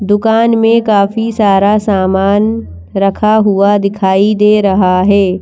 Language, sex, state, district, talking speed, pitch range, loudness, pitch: Hindi, female, Madhya Pradesh, Bhopal, 120 wpm, 195-215 Hz, -10 LUFS, 205 Hz